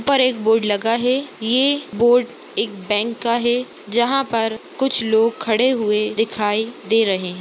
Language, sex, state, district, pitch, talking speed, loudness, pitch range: Hindi, male, Maharashtra, Dhule, 225 Hz, 180 wpm, -19 LUFS, 215-245 Hz